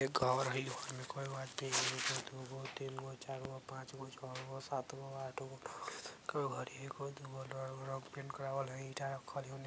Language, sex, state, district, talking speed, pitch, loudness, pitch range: Bajjika, male, Bihar, Vaishali, 200 wpm, 135 Hz, -42 LUFS, 130-135 Hz